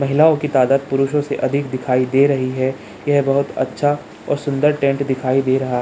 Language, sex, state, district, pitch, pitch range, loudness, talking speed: Hindi, male, Bihar, Jamui, 135 Hz, 130-145 Hz, -18 LUFS, 205 wpm